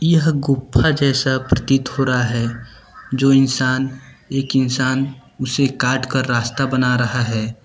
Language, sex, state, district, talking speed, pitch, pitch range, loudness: Hindi, male, Uttar Pradesh, Lucknow, 140 wpm, 130 Hz, 125-135 Hz, -18 LUFS